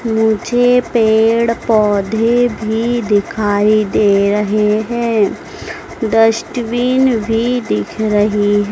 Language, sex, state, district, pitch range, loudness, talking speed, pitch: Hindi, female, Madhya Pradesh, Dhar, 210-235 Hz, -14 LUFS, 85 wpm, 220 Hz